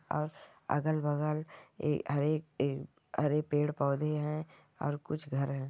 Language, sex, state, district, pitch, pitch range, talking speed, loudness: Hindi, female, Bihar, Jamui, 150 Hz, 145-150 Hz, 105 wpm, -34 LUFS